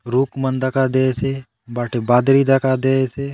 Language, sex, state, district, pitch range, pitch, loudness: Halbi, male, Chhattisgarh, Bastar, 125-135 Hz, 130 Hz, -18 LUFS